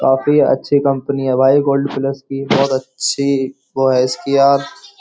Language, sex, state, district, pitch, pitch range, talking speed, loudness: Hindi, male, Uttar Pradesh, Jyotiba Phule Nagar, 135 Hz, 135-140 Hz, 155 wpm, -15 LUFS